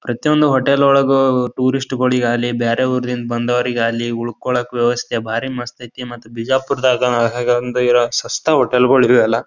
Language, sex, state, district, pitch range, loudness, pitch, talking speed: Kannada, male, Karnataka, Bijapur, 120-130 Hz, -16 LUFS, 125 Hz, 140 wpm